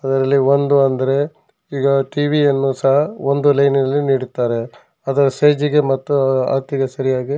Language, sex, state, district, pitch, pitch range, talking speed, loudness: Kannada, male, Karnataka, Shimoga, 140 Hz, 135-145 Hz, 155 wpm, -16 LUFS